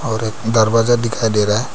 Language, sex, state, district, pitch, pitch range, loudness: Hindi, male, Arunachal Pradesh, Papum Pare, 115 Hz, 110-115 Hz, -16 LUFS